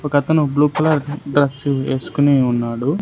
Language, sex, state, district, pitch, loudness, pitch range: Telugu, male, Andhra Pradesh, Sri Satya Sai, 145 Hz, -17 LUFS, 135-150 Hz